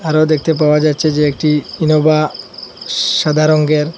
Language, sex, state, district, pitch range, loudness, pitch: Bengali, male, Assam, Hailakandi, 150-155 Hz, -13 LUFS, 155 Hz